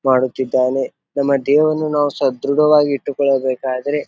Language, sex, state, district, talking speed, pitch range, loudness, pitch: Kannada, male, Karnataka, Bijapur, 105 wpm, 130-145 Hz, -17 LUFS, 140 Hz